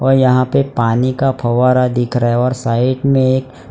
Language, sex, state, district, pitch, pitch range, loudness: Hindi, male, Gujarat, Valsad, 130 Hz, 125-130 Hz, -14 LUFS